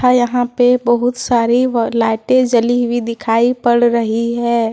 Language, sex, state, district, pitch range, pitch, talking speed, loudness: Hindi, female, Jharkhand, Deoghar, 230-245 Hz, 240 Hz, 140 wpm, -14 LUFS